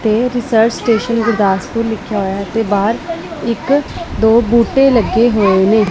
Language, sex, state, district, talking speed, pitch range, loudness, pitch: Punjabi, female, Punjab, Pathankot, 140 wpm, 215-240 Hz, -14 LUFS, 225 Hz